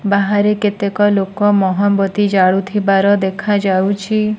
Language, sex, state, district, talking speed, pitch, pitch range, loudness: Odia, female, Odisha, Nuapada, 95 wpm, 200 Hz, 195-205 Hz, -14 LUFS